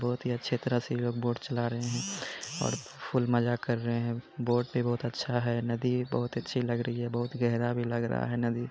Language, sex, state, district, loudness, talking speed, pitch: Hindi, male, Bihar, Jamui, -31 LUFS, 240 wpm, 120 Hz